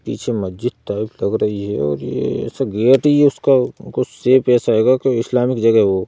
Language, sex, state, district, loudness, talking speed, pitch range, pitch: Hindi, male, Madhya Pradesh, Bhopal, -17 LUFS, 205 wpm, 105-130 Hz, 120 Hz